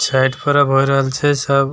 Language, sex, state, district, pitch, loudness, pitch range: Maithili, male, Bihar, Begusarai, 140 Hz, -15 LUFS, 135-145 Hz